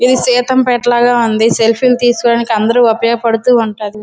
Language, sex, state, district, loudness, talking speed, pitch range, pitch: Telugu, female, Andhra Pradesh, Srikakulam, -11 LUFS, 120 wpm, 225-245 Hz, 235 Hz